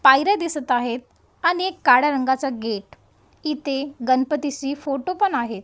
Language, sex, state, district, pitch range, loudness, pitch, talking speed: Marathi, female, Maharashtra, Gondia, 255-300 Hz, -22 LUFS, 275 Hz, 150 wpm